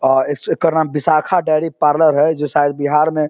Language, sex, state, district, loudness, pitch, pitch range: Hindi, male, Bihar, Samastipur, -15 LUFS, 150 Hz, 145-160 Hz